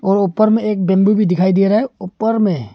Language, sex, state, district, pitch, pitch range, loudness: Hindi, male, Arunachal Pradesh, Longding, 200 Hz, 190-215 Hz, -15 LUFS